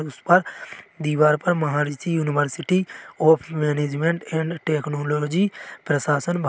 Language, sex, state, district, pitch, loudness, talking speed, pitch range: Hindi, male, Chhattisgarh, Bilaspur, 155 Hz, -22 LUFS, 120 wpm, 150-170 Hz